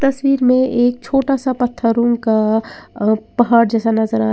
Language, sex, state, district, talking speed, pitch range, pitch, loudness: Hindi, female, Uttar Pradesh, Lalitpur, 195 wpm, 225-255 Hz, 240 Hz, -16 LUFS